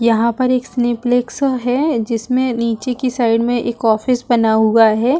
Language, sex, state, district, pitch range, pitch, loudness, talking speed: Hindi, female, Chhattisgarh, Balrampur, 230-250 Hz, 240 Hz, -16 LUFS, 185 wpm